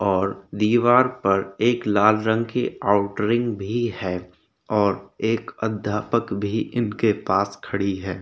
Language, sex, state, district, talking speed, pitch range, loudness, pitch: Hindi, male, Maharashtra, Chandrapur, 130 wpm, 100-115 Hz, -22 LUFS, 105 Hz